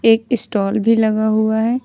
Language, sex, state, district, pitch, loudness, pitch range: Hindi, female, Jharkhand, Ranchi, 220 Hz, -16 LUFS, 215-230 Hz